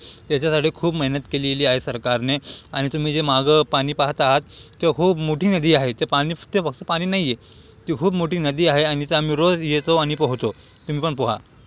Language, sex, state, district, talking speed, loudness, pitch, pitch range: Marathi, male, Maharashtra, Aurangabad, 185 wpm, -20 LUFS, 150 Hz, 135-165 Hz